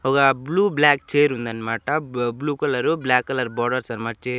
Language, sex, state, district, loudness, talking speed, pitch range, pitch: Telugu, male, Andhra Pradesh, Annamaya, -21 LUFS, 190 wpm, 120-145 Hz, 130 Hz